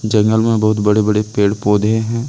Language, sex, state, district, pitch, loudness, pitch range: Hindi, male, Jharkhand, Deoghar, 110 Hz, -15 LUFS, 105-110 Hz